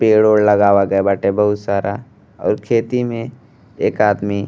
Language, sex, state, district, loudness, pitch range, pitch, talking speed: Bhojpuri, male, Uttar Pradesh, Gorakhpur, -16 LUFS, 100-115 Hz, 105 Hz, 175 wpm